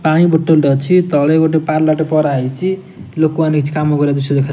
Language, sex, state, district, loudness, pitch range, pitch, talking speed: Odia, male, Odisha, Nuapada, -14 LUFS, 145-160 Hz, 155 Hz, 240 wpm